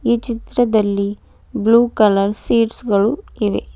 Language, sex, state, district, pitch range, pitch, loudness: Kannada, female, Karnataka, Bidar, 205-235 Hz, 225 Hz, -17 LUFS